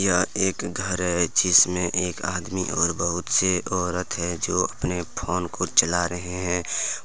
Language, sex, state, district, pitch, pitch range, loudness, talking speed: Hindi, male, Jharkhand, Deoghar, 90 Hz, 85-90 Hz, -23 LUFS, 155 wpm